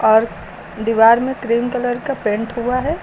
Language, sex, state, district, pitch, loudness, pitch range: Hindi, female, Uttar Pradesh, Lucknow, 235 Hz, -17 LUFS, 225-250 Hz